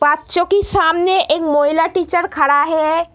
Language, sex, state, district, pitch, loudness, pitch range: Hindi, female, Bihar, Araria, 325 Hz, -15 LUFS, 300-350 Hz